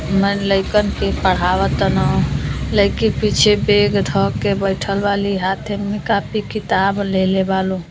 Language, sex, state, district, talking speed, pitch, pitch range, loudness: Bhojpuri, female, Uttar Pradesh, Deoria, 150 wpm, 200 Hz, 190-205 Hz, -17 LUFS